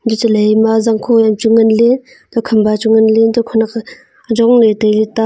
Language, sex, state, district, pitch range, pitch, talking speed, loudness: Wancho, female, Arunachal Pradesh, Longding, 220-230 Hz, 225 Hz, 150 wpm, -11 LUFS